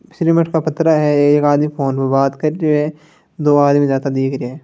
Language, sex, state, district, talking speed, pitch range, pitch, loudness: Marwari, male, Rajasthan, Nagaur, 235 wpm, 135-155 Hz, 150 Hz, -15 LUFS